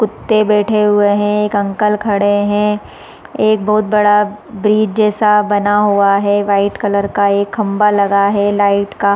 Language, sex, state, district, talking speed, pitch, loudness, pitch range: Hindi, female, Chhattisgarh, Raigarh, 165 wpm, 205 Hz, -13 LUFS, 200-210 Hz